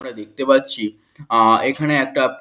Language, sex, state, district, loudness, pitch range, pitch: Bengali, male, West Bengal, Kolkata, -17 LUFS, 110-135 Hz, 130 Hz